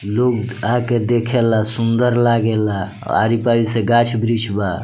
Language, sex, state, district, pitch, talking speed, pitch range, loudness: Bhojpuri, male, Bihar, Muzaffarpur, 115 Hz, 125 wpm, 110-120 Hz, -17 LUFS